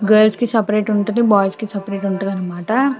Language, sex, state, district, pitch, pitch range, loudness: Telugu, female, Andhra Pradesh, Chittoor, 210 Hz, 195-220 Hz, -17 LUFS